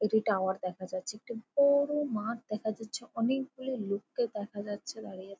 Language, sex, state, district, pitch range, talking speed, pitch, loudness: Bengali, female, West Bengal, Jalpaiguri, 205-240 Hz, 155 wpm, 215 Hz, -33 LUFS